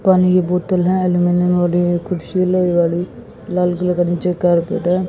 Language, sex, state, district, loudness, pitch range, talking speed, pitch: Hindi, female, Haryana, Jhajjar, -16 LUFS, 175-180 Hz, 165 wpm, 180 Hz